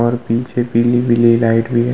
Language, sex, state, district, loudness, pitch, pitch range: Hindi, male, Uttar Pradesh, Muzaffarnagar, -14 LUFS, 120 Hz, 115-120 Hz